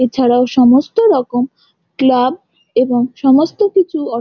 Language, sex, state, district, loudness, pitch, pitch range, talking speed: Bengali, female, West Bengal, Jhargram, -13 LUFS, 255 Hz, 245-300 Hz, 115 wpm